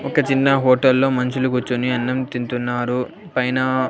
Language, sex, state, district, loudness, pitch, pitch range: Telugu, male, Andhra Pradesh, Annamaya, -19 LUFS, 130 Hz, 125-130 Hz